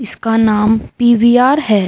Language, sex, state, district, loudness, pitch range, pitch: Hindi, female, Uttar Pradesh, Jyotiba Phule Nagar, -12 LUFS, 215-240 Hz, 225 Hz